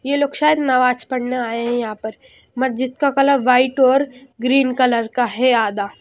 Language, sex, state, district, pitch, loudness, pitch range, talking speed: Hindi, female, Haryana, Jhajjar, 255 Hz, -17 LUFS, 240-270 Hz, 180 wpm